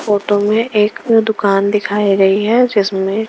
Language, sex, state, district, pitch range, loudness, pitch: Hindi, female, Maharashtra, Mumbai Suburban, 200-220 Hz, -14 LUFS, 205 Hz